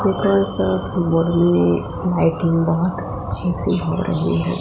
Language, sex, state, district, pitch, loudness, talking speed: Hindi, female, Gujarat, Gandhinagar, 165 Hz, -17 LUFS, 105 wpm